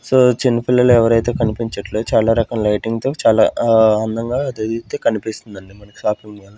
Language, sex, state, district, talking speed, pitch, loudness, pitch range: Telugu, male, Andhra Pradesh, Sri Satya Sai, 155 wpm, 115 Hz, -16 LUFS, 105-115 Hz